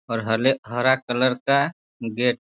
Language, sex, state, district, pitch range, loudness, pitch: Hindi, male, Bihar, Sitamarhi, 115-135 Hz, -22 LUFS, 125 Hz